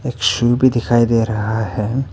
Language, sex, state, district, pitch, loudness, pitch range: Hindi, male, Arunachal Pradesh, Papum Pare, 115 Hz, -16 LUFS, 110-120 Hz